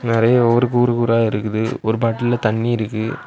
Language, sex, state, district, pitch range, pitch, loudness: Tamil, male, Tamil Nadu, Kanyakumari, 110-120 Hz, 115 Hz, -18 LUFS